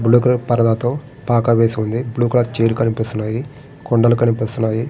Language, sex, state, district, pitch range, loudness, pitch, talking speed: Telugu, male, Andhra Pradesh, Srikakulam, 115-125 Hz, -17 LUFS, 120 Hz, 145 wpm